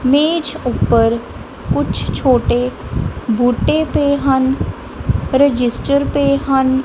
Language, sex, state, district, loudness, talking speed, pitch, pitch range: Punjabi, female, Punjab, Kapurthala, -16 LUFS, 90 wpm, 265 Hz, 245-280 Hz